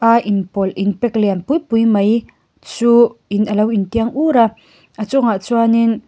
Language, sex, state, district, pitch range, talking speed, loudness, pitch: Mizo, female, Mizoram, Aizawl, 205-235 Hz, 180 wpm, -15 LUFS, 225 Hz